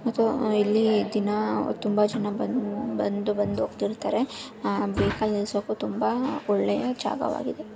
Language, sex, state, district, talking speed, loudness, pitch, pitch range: Kannada, female, Karnataka, Dakshina Kannada, 115 wpm, -26 LUFS, 210 Hz, 205-230 Hz